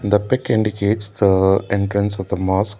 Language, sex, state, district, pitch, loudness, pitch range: English, male, Karnataka, Bangalore, 100 Hz, -18 LUFS, 95-105 Hz